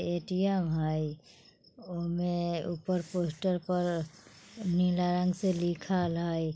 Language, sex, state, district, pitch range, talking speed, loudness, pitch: Bajjika, female, Bihar, Vaishali, 170-180 Hz, 100 wpm, -31 LUFS, 175 Hz